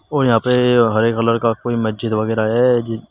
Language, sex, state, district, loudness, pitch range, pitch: Hindi, male, Uttar Pradesh, Shamli, -16 LUFS, 110-120 Hz, 115 Hz